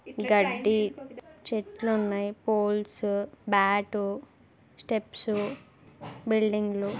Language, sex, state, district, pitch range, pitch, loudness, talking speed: Telugu, female, Andhra Pradesh, Guntur, 205-220 Hz, 210 Hz, -28 LUFS, 70 wpm